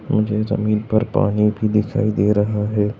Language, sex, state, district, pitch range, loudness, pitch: Hindi, male, Chhattisgarh, Bilaspur, 105-110 Hz, -19 LUFS, 105 Hz